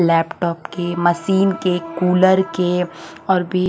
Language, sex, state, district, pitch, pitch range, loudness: Hindi, female, Haryana, Charkhi Dadri, 180 Hz, 170-190 Hz, -18 LUFS